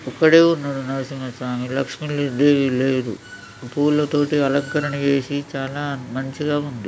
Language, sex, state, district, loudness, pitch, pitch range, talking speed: Telugu, male, Andhra Pradesh, Krishna, -20 LUFS, 140 Hz, 130-145 Hz, 95 wpm